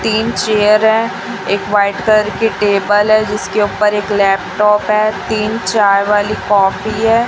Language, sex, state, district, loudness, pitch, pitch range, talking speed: Hindi, female, Chhattisgarh, Raipur, -13 LUFS, 210 Hz, 200-215 Hz, 155 wpm